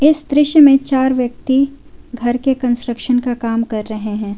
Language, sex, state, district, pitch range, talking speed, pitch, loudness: Hindi, female, Jharkhand, Garhwa, 235-275 Hz, 180 wpm, 250 Hz, -15 LUFS